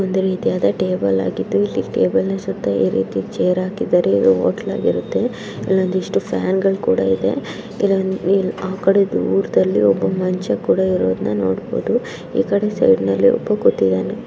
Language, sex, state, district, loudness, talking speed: Kannada, female, Karnataka, Belgaum, -18 LUFS, 95 wpm